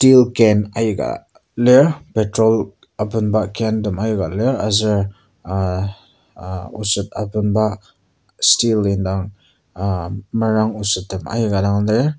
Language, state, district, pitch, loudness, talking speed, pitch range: Ao, Nagaland, Kohima, 105 Hz, -18 LUFS, 110 wpm, 95-110 Hz